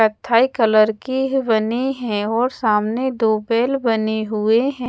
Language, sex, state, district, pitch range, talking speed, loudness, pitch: Hindi, female, Odisha, Khordha, 215-255 Hz, 145 wpm, -18 LUFS, 230 Hz